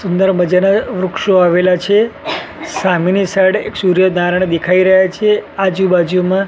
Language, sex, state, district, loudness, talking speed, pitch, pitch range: Gujarati, male, Gujarat, Gandhinagar, -13 LUFS, 130 wpm, 185 Hz, 180-195 Hz